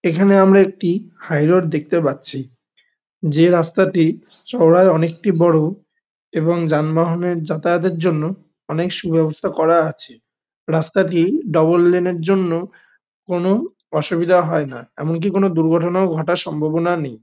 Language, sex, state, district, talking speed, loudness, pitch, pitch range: Bengali, male, West Bengal, Malda, 120 wpm, -17 LUFS, 170 Hz, 160-185 Hz